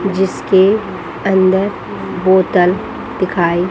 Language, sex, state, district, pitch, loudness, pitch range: Hindi, female, Chandigarh, Chandigarh, 190 Hz, -14 LUFS, 185-195 Hz